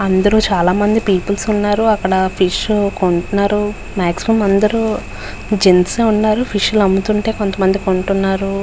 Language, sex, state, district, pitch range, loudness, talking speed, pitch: Telugu, female, Andhra Pradesh, Visakhapatnam, 190-215 Hz, -15 LUFS, 125 wpm, 200 Hz